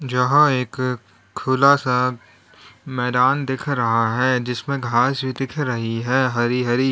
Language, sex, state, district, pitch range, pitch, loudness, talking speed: Hindi, male, Uttar Pradesh, Lalitpur, 120-135 Hz, 125 Hz, -20 LUFS, 140 wpm